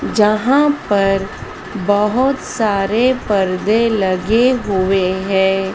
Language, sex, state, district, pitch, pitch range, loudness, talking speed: Hindi, female, Madhya Pradesh, Dhar, 205 Hz, 195-230 Hz, -15 LUFS, 75 wpm